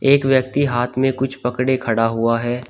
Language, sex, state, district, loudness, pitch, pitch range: Hindi, male, Uttar Pradesh, Shamli, -18 LUFS, 130 Hz, 120-135 Hz